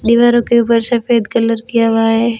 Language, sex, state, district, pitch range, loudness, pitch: Hindi, female, Rajasthan, Bikaner, 230-235 Hz, -13 LUFS, 235 Hz